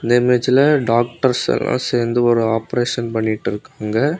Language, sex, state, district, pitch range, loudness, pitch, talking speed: Tamil, male, Tamil Nadu, Kanyakumari, 115-125 Hz, -17 LUFS, 120 Hz, 115 wpm